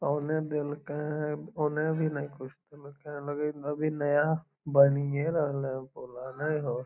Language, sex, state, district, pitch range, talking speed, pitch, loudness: Magahi, male, Bihar, Lakhisarai, 140-150 Hz, 120 wpm, 145 Hz, -30 LUFS